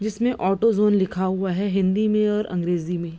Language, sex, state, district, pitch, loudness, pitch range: Hindi, female, Bihar, Madhepura, 195 Hz, -22 LUFS, 185-215 Hz